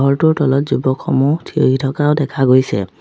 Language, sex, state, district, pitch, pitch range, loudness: Assamese, female, Assam, Sonitpur, 135 Hz, 130-145 Hz, -15 LUFS